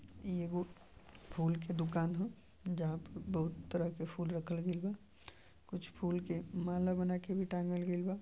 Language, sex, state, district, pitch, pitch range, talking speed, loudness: Bhojpuri, male, Uttar Pradesh, Gorakhpur, 175 Hz, 170-180 Hz, 185 wpm, -39 LUFS